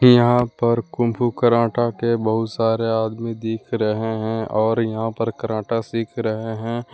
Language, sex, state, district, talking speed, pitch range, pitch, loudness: Hindi, male, Jharkhand, Palamu, 235 wpm, 110-115 Hz, 115 Hz, -21 LUFS